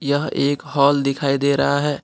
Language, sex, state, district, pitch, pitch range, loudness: Hindi, male, Jharkhand, Deoghar, 140 Hz, 140-145 Hz, -19 LUFS